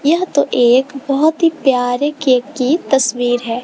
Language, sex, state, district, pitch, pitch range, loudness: Hindi, female, Bihar, West Champaran, 270 Hz, 250-295 Hz, -15 LUFS